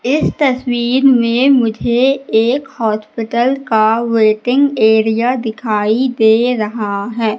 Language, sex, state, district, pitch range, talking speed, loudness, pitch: Hindi, female, Madhya Pradesh, Katni, 220-255 Hz, 105 wpm, -14 LUFS, 230 Hz